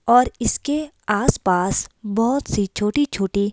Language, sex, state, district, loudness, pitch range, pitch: Hindi, female, Himachal Pradesh, Shimla, -21 LUFS, 200-275 Hz, 225 Hz